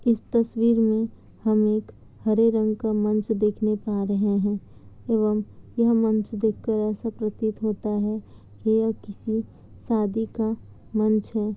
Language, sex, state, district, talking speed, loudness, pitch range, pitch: Hindi, female, Bihar, Kishanganj, 150 wpm, -24 LUFS, 210-225 Hz, 215 Hz